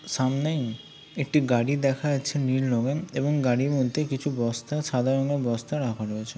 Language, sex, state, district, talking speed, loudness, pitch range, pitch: Bengali, male, West Bengal, Kolkata, 160 wpm, -26 LUFS, 125-145 Hz, 135 Hz